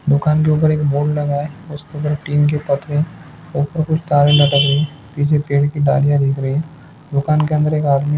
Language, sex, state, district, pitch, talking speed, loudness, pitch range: Hindi, male, Andhra Pradesh, Chittoor, 145 Hz, 80 wpm, -16 LUFS, 145-150 Hz